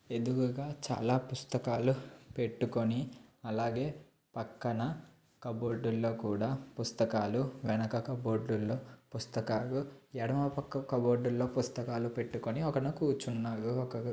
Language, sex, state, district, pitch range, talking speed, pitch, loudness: Telugu, male, Andhra Pradesh, Visakhapatnam, 115-130 Hz, 100 wpm, 120 Hz, -35 LUFS